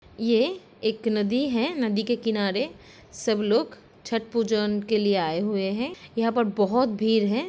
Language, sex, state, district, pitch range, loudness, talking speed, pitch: Hindi, female, Uttar Pradesh, Jalaun, 210-235 Hz, -25 LUFS, 170 wpm, 225 Hz